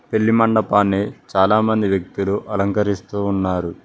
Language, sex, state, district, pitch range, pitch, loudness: Telugu, male, Telangana, Mahabubabad, 95-110 Hz, 100 Hz, -18 LUFS